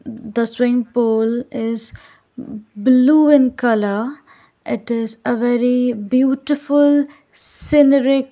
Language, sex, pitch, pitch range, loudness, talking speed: English, female, 245 Hz, 230-275 Hz, -16 LUFS, 100 wpm